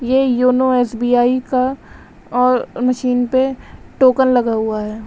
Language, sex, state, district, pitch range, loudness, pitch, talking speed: Hindi, female, Uttar Pradesh, Lalitpur, 245-260 Hz, -16 LUFS, 250 Hz, 130 wpm